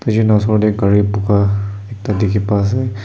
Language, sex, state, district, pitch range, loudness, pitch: Nagamese, male, Nagaland, Kohima, 100-110 Hz, -15 LUFS, 105 Hz